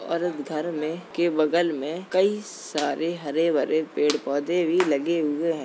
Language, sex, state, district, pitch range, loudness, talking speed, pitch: Hindi, female, Uttar Pradesh, Jalaun, 155-170 Hz, -25 LUFS, 170 wpm, 165 Hz